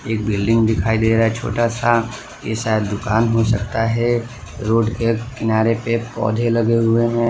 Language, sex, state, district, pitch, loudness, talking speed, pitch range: Hindi, male, Gujarat, Valsad, 115 Hz, -18 LUFS, 180 wpm, 110-115 Hz